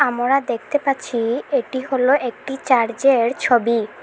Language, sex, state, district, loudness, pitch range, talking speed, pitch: Bengali, female, Assam, Hailakandi, -19 LUFS, 235-270 Hz, 120 wpm, 255 Hz